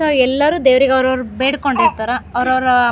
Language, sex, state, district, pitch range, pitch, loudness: Kannada, female, Karnataka, Gulbarga, 250-275 Hz, 260 Hz, -15 LUFS